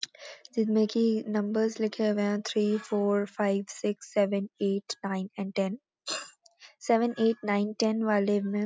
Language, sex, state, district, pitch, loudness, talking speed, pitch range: Hindi, female, Uttarakhand, Uttarkashi, 210 Hz, -29 LUFS, 160 wpm, 205-225 Hz